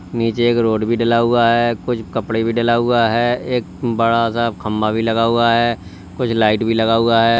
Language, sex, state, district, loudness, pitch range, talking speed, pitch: Hindi, male, Uttar Pradesh, Lalitpur, -16 LUFS, 115-120 Hz, 220 wpm, 115 Hz